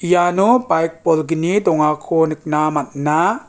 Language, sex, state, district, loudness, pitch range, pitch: Garo, male, Meghalaya, West Garo Hills, -17 LUFS, 150-175 Hz, 160 Hz